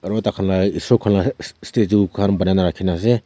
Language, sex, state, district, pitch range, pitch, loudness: Nagamese, male, Nagaland, Kohima, 95-110 Hz, 100 Hz, -18 LUFS